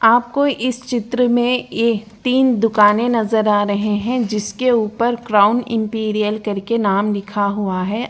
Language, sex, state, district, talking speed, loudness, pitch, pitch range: Hindi, female, Bihar, Purnia, 140 wpm, -17 LUFS, 225 Hz, 210-240 Hz